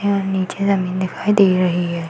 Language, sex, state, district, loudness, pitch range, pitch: Hindi, female, Uttar Pradesh, Varanasi, -18 LUFS, 180-200 Hz, 185 Hz